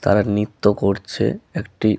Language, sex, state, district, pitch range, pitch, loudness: Bengali, male, West Bengal, Malda, 100-105 Hz, 105 Hz, -20 LUFS